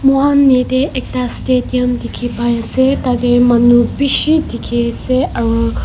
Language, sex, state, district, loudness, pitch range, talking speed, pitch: Nagamese, female, Nagaland, Kohima, -14 LUFS, 240-260 Hz, 135 wpm, 250 Hz